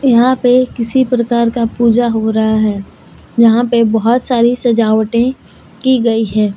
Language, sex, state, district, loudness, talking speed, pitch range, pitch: Hindi, female, Jharkhand, Deoghar, -12 LUFS, 155 wpm, 225-245 Hz, 235 Hz